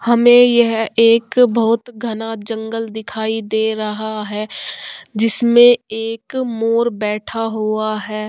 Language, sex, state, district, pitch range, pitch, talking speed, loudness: Hindi, female, Bihar, Vaishali, 215-235 Hz, 225 Hz, 130 wpm, -16 LUFS